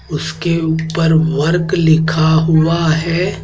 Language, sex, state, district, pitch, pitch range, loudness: Hindi, male, Madhya Pradesh, Dhar, 160 Hz, 160-170 Hz, -14 LUFS